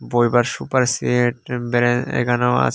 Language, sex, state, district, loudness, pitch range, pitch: Bengali, male, Tripura, Unakoti, -19 LUFS, 120-125 Hz, 120 Hz